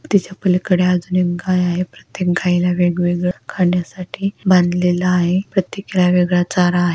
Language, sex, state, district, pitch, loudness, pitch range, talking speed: Marathi, female, Maharashtra, Pune, 180 Hz, -17 LUFS, 180-185 Hz, 140 wpm